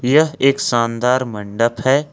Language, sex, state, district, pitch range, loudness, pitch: Hindi, male, Jharkhand, Ranchi, 115-135 Hz, -17 LUFS, 125 Hz